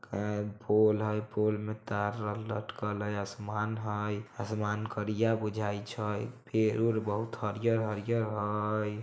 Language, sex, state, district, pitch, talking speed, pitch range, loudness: Maithili, male, Bihar, Samastipur, 105 Hz, 120 wpm, 105-110 Hz, -32 LUFS